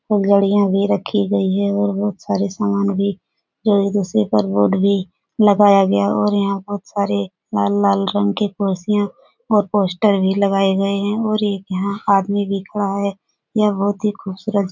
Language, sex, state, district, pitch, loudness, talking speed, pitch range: Hindi, female, Bihar, Supaul, 200 Hz, -18 LUFS, 190 wpm, 190-205 Hz